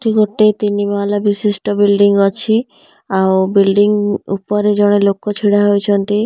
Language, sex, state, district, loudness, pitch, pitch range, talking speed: Odia, female, Odisha, Nuapada, -14 LUFS, 205 Hz, 200-210 Hz, 145 wpm